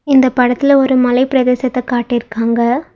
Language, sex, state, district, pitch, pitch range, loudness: Tamil, female, Tamil Nadu, Nilgiris, 250 Hz, 245-260 Hz, -13 LUFS